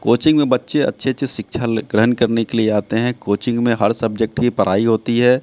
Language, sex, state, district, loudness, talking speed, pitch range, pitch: Hindi, male, Bihar, Katihar, -17 LUFS, 230 wpm, 110-120 Hz, 120 Hz